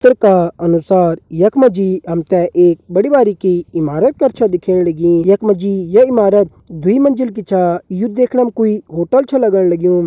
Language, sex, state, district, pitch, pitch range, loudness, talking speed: Hindi, male, Uttarakhand, Uttarkashi, 190 Hz, 175-225 Hz, -13 LUFS, 195 wpm